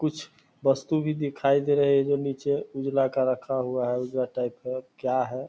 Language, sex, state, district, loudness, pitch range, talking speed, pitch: Hindi, male, Bihar, Purnia, -26 LUFS, 130-140 Hz, 205 wpm, 135 Hz